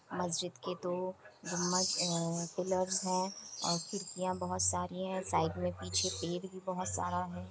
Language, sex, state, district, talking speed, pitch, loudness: Hindi, female, Bihar, Kishanganj, 160 wpm, 180 Hz, -35 LUFS